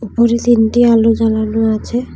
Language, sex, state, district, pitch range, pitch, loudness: Bengali, female, Tripura, West Tripura, 225-235 Hz, 225 Hz, -13 LUFS